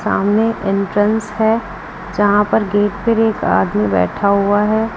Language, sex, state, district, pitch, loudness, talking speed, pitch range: Hindi, female, Uttar Pradesh, Lucknow, 205 Hz, -15 LUFS, 145 wpm, 195-220 Hz